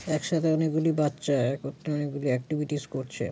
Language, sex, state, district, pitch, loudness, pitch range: Bengali, male, West Bengal, Jalpaiguri, 150 Hz, -28 LUFS, 140-155 Hz